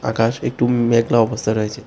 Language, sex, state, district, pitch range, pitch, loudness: Bengali, male, Tripura, West Tripura, 110-120 Hz, 115 Hz, -18 LUFS